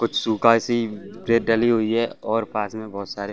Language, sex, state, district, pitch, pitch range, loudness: Hindi, male, Bihar, Saran, 115 Hz, 105-115 Hz, -22 LUFS